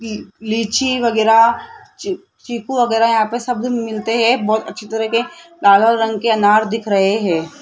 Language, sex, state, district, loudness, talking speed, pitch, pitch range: Hindi, female, Rajasthan, Jaipur, -16 LUFS, 180 wpm, 225 Hz, 215-245 Hz